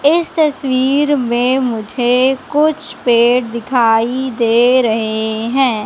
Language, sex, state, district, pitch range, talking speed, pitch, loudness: Hindi, female, Madhya Pradesh, Katni, 230-270 Hz, 100 wpm, 250 Hz, -14 LUFS